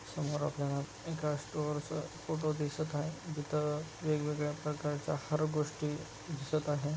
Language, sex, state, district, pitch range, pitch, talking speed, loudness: Marathi, male, Maharashtra, Dhule, 150-155 Hz, 150 Hz, 130 wpm, -37 LUFS